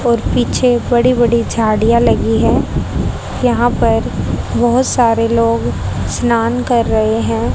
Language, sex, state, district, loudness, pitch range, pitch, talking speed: Hindi, female, Haryana, Charkhi Dadri, -14 LUFS, 230-245 Hz, 235 Hz, 125 wpm